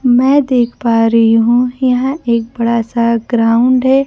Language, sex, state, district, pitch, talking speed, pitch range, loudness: Hindi, female, Bihar, Kaimur, 240 Hz, 160 wpm, 230-255 Hz, -12 LUFS